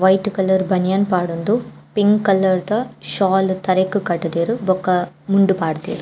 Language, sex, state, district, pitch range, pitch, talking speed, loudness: Tulu, female, Karnataka, Dakshina Kannada, 180-200 Hz, 190 Hz, 130 wpm, -18 LUFS